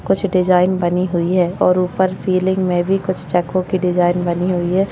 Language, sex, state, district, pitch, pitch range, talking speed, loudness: Hindi, female, Maharashtra, Chandrapur, 180 Hz, 175-185 Hz, 205 wpm, -17 LUFS